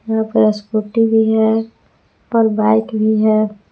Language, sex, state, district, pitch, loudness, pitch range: Hindi, female, Jharkhand, Palamu, 220 Hz, -15 LUFS, 215-225 Hz